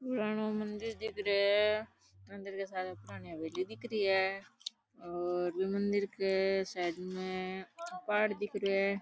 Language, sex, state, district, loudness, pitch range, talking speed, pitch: Rajasthani, female, Rajasthan, Churu, -35 LUFS, 185-215 Hz, 155 wpm, 195 Hz